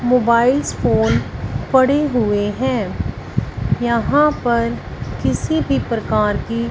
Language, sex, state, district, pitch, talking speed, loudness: Hindi, female, Punjab, Fazilka, 235 Hz, 100 wpm, -18 LUFS